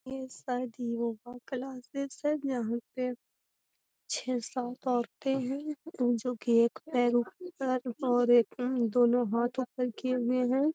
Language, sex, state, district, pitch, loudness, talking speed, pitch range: Magahi, female, Bihar, Gaya, 250 Hz, -31 LUFS, 130 wpm, 240-260 Hz